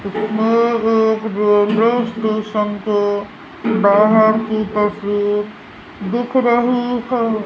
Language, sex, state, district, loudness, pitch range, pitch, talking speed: Hindi, female, Rajasthan, Jaipur, -16 LUFS, 210-230 Hz, 215 Hz, 90 wpm